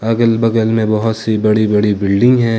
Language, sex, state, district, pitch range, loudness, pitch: Hindi, male, Jharkhand, Ranchi, 105-115 Hz, -13 LUFS, 110 Hz